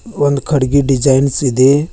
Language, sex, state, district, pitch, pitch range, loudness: Kannada, male, Karnataka, Bidar, 140 Hz, 135-145 Hz, -13 LUFS